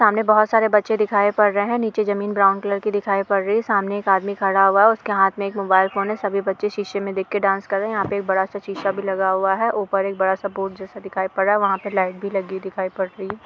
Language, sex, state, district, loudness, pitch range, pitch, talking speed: Hindi, female, Uttar Pradesh, Jalaun, -20 LUFS, 195-205 Hz, 200 Hz, 310 wpm